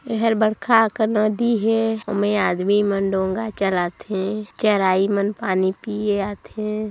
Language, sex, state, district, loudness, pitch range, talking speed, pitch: Hindi, female, Chhattisgarh, Sarguja, -21 LUFS, 195-220 Hz, 140 wpm, 210 Hz